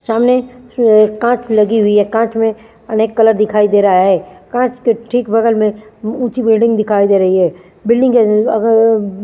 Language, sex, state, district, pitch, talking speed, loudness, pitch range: Hindi, female, Chandigarh, Chandigarh, 225 Hz, 190 wpm, -12 LUFS, 210-230 Hz